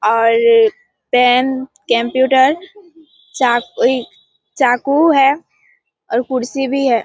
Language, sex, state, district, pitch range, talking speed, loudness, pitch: Hindi, female, Bihar, Kishanganj, 245-310 Hz, 85 wpm, -14 LUFS, 265 Hz